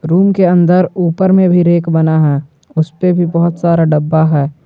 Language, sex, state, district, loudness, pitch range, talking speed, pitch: Hindi, male, Jharkhand, Garhwa, -12 LUFS, 160-180 Hz, 195 wpm, 170 Hz